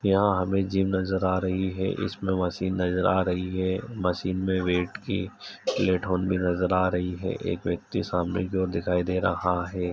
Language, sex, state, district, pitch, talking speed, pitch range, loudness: Hindi, male, Uttar Pradesh, Etah, 90 Hz, 200 wpm, 90-95 Hz, -27 LUFS